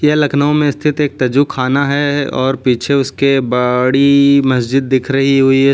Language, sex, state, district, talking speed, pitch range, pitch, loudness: Hindi, male, Uttar Pradesh, Lucknow, 180 wpm, 130-140 Hz, 135 Hz, -13 LUFS